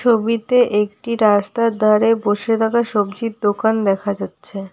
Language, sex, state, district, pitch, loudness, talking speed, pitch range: Bengali, female, West Bengal, Alipurduar, 215 Hz, -17 LUFS, 125 wpm, 205-230 Hz